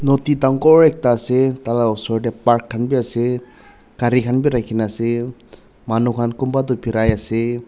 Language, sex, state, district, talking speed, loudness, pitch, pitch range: Nagamese, male, Nagaland, Dimapur, 165 wpm, -17 LUFS, 120 Hz, 115-130 Hz